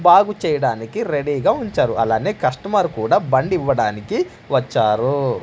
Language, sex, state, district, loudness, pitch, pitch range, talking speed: Telugu, male, Andhra Pradesh, Manyam, -19 LUFS, 140 Hz, 120-180 Hz, 110 wpm